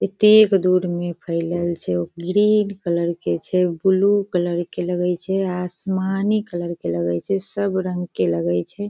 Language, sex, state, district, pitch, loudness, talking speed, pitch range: Maithili, female, Bihar, Sitamarhi, 180 Hz, -20 LUFS, 170 wpm, 170-195 Hz